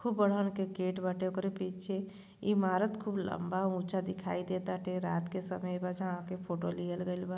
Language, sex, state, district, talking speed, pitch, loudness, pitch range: Bhojpuri, female, Uttar Pradesh, Gorakhpur, 195 wpm, 185 Hz, -35 LUFS, 185-195 Hz